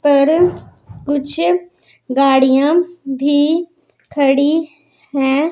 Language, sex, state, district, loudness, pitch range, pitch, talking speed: Hindi, female, Punjab, Pathankot, -15 LUFS, 275-330 Hz, 290 Hz, 65 wpm